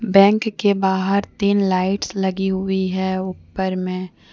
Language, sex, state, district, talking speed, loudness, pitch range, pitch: Hindi, female, Jharkhand, Deoghar, 140 wpm, -20 LUFS, 185-200 Hz, 190 Hz